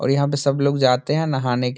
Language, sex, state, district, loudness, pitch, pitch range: Hindi, male, Bihar, Saran, -19 LUFS, 140 Hz, 130-140 Hz